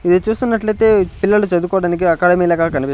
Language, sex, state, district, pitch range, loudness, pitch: Telugu, male, Andhra Pradesh, Sri Satya Sai, 175-210 Hz, -15 LUFS, 180 Hz